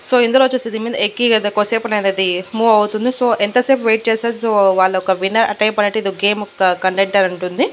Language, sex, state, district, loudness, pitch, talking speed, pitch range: Telugu, female, Andhra Pradesh, Annamaya, -15 LUFS, 210 Hz, 210 wpm, 195-230 Hz